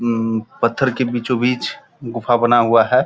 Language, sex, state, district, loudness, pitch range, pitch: Hindi, male, Bihar, Purnia, -17 LUFS, 115-125 Hz, 120 Hz